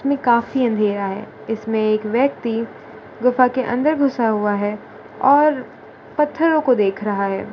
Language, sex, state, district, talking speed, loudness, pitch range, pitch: Hindi, female, Gujarat, Gandhinagar, 150 wpm, -19 LUFS, 210-275 Hz, 235 Hz